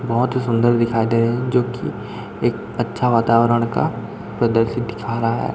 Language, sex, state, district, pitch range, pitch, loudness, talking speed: Hindi, male, Chhattisgarh, Raipur, 115-120 Hz, 115 Hz, -19 LUFS, 175 wpm